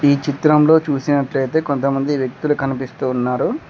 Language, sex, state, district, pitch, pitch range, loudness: Telugu, male, Telangana, Mahabubabad, 140 Hz, 135-150 Hz, -18 LUFS